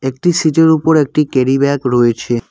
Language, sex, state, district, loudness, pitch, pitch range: Bengali, male, West Bengal, Cooch Behar, -13 LUFS, 140 Hz, 125-160 Hz